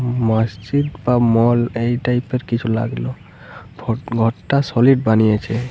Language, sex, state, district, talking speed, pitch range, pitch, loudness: Bengali, male, Jharkhand, Jamtara, 135 wpm, 110-125 Hz, 120 Hz, -18 LUFS